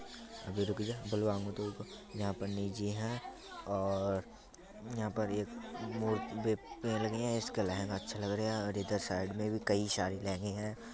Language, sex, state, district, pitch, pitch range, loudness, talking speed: Bundeli, male, Uttar Pradesh, Budaun, 105 Hz, 100-110 Hz, -37 LUFS, 115 wpm